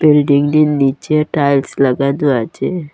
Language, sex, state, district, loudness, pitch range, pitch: Bengali, female, Assam, Hailakandi, -14 LUFS, 140-150 Hz, 145 Hz